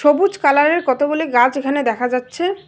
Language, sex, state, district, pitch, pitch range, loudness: Bengali, female, West Bengal, Alipurduar, 290 Hz, 255-320 Hz, -16 LUFS